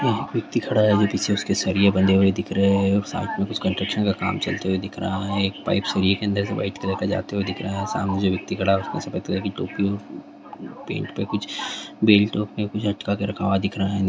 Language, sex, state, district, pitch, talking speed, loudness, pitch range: Hindi, male, Bihar, Darbhanga, 100 Hz, 185 wpm, -23 LUFS, 95-100 Hz